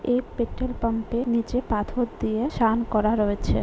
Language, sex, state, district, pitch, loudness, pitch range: Bengali, female, West Bengal, Kolkata, 230 Hz, -25 LUFS, 220-245 Hz